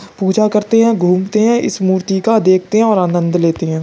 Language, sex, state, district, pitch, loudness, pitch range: Hindi, male, Uttar Pradesh, Budaun, 190 Hz, -13 LUFS, 180-215 Hz